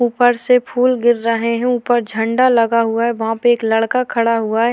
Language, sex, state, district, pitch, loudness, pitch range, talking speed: Hindi, female, Uttar Pradesh, Hamirpur, 235 Hz, -15 LUFS, 230-245 Hz, 230 wpm